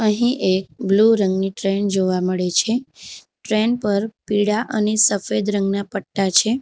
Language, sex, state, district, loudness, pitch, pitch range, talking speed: Gujarati, female, Gujarat, Valsad, -19 LUFS, 205 Hz, 195-220 Hz, 145 wpm